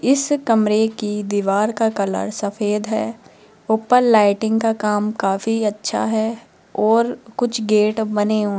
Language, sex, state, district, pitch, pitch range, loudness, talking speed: Hindi, female, Rajasthan, Jaipur, 220 Hz, 210-225 Hz, -19 LUFS, 140 wpm